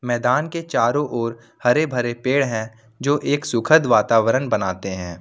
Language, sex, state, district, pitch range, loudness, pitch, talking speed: Hindi, male, Jharkhand, Ranchi, 115-145 Hz, -20 LUFS, 120 Hz, 160 wpm